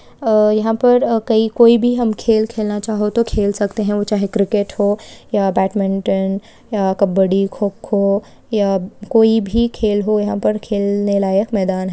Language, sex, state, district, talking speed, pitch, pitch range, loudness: Hindi, female, Chhattisgarh, Balrampur, 170 wpm, 205 Hz, 200-220 Hz, -16 LUFS